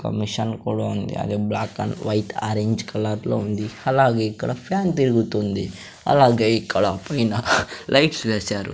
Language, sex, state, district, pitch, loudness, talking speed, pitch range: Telugu, female, Andhra Pradesh, Sri Satya Sai, 110 Hz, -22 LUFS, 145 wpm, 105-120 Hz